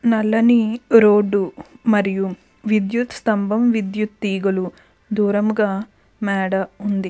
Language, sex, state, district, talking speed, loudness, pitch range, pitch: Telugu, female, Andhra Pradesh, Krishna, 85 wpm, -19 LUFS, 195-220 Hz, 210 Hz